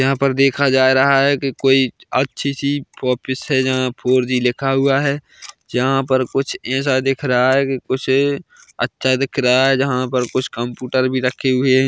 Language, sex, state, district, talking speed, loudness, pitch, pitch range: Hindi, male, Chhattisgarh, Bilaspur, 195 wpm, -17 LUFS, 130 Hz, 130-135 Hz